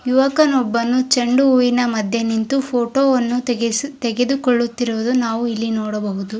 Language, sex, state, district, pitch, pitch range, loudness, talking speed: Kannada, female, Karnataka, Gulbarga, 245 Hz, 230-255 Hz, -18 LUFS, 105 wpm